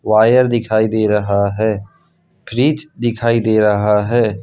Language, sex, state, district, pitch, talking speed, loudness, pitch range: Hindi, male, Gujarat, Valsad, 110 Hz, 135 wpm, -15 LUFS, 105-120 Hz